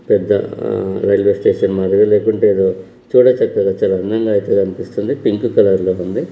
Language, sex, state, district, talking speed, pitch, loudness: Telugu, male, Karnataka, Bellary, 170 wpm, 105 Hz, -15 LUFS